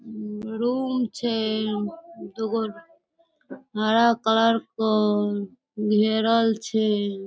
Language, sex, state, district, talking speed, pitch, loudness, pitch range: Maithili, female, Bihar, Darbhanga, 75 wpm, 220 Hz, -24 LUFS, 215-235 Hz